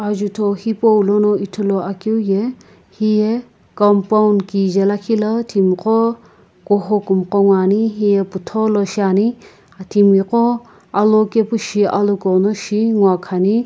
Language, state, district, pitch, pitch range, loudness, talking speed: Sumi, Nagaland, Kohima, 205 Hz, 195-220 Hz, -16 LUFS, 95 wpm